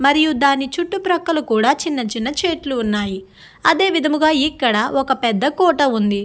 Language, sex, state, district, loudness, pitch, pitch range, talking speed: Telugu, female, Andhra Pradesh, Guntur, -17 LUFS, 280 Hz, 235-315 Hz, 145 wpm